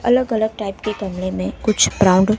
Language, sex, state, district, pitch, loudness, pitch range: Hindi, female, Maharashtra, Mumbai Suburban, 210 Hz, -18 LUFS, 190-220 Hz